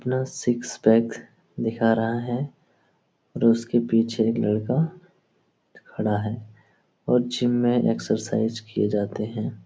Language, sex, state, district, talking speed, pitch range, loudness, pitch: Hindi, male, Bihar, Jahanabad, 125 wpm, 110-120 Hz, -24 LUFS, 115 Hz